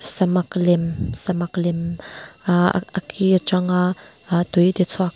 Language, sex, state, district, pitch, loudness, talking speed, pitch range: Mizo, female, Mizoram, Aizawl, 180 Hz, -20 LUFS, 130 wpm, 175-185 Hz